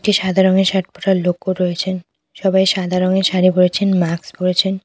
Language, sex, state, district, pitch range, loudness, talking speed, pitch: Bengali, female, West Bengal, Cooch Behar, 180-190 Hz, -16 LUFS, 175 wpm, 185 Hz